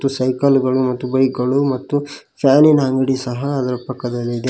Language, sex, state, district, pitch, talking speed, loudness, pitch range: Kannada, male, Karnataka, Koppal, 130 Hz, 160 wpm, -17 LUFS, 125-135 Hz